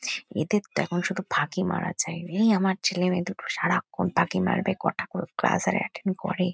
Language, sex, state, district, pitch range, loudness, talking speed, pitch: Bengali, female, West Bengal, Kolkata, 180-190 Hz, -26 LUFS, 185 wpm, 185 Hz